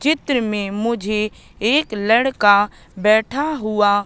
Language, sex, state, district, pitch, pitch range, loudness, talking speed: Hindi, female, Madhya Pradesh, Katni, 215 Hz, 205-260 Hz, -18 LUFS, 105 wpm